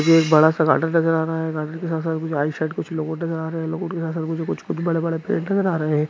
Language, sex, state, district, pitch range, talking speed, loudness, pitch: Hindi, male, Andhra Pradesh, Srikakulam, 160-165 Hz, 130 wpm, -21 LUFS, 160 Hz